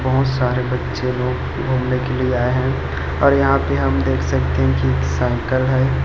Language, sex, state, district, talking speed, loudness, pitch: Hindi, male, Chhattisgarh, Raipur, 200 wpm, -18 LUFS, 120 Hz